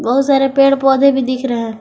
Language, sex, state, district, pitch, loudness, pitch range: Hindi, female, Jharkhand, Garhwa, 270 Hz, -13 LUFS, 255-275 Hz